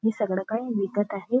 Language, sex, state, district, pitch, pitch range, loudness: Marathi, female, Maharashtra, Nagpur, 210 Hz, 200-225 Hz, -27 LUFS